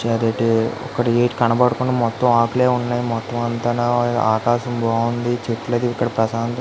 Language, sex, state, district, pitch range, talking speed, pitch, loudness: Telugu, male, Andhra Pradesh, Visakhapatnam, 115-120 Hz, 125 wpm, 120 Hz, -19 LUFS